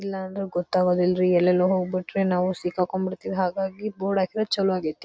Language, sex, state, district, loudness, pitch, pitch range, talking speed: Kannada, female, Karnataka, Dharwad, -24 LUFS, 185 Hz, 180-195 Hz, 155 wpm